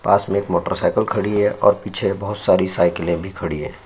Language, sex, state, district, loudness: Hindi, male, Uttar Pradesh, Jyotiba Phule Nagar, -19 LUFS